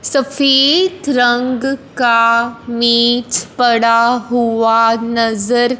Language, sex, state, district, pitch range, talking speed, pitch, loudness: Hindi, male, Punjab, Fazilka, 230-255 Hz, 85 wpm, 240 Hz, -13 LUFS